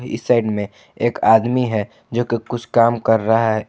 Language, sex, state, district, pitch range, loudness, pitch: Hindi, male, Jharkhand, Ranchi, 110-120 Hz, -18 LUFS, 115 Hz